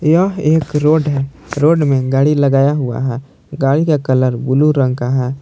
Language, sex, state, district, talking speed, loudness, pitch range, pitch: Hindi, male, Jharkhand, Palamu, 190 wpm, -14 LUFS, 130-150 Hz, 140 Hz